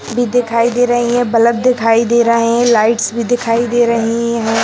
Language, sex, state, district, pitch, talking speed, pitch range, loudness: Hindi, female, Uttar Pradesh, Hamirpur, 235 Hz, 205 wpm, 230-240 Hz, -13 LUFS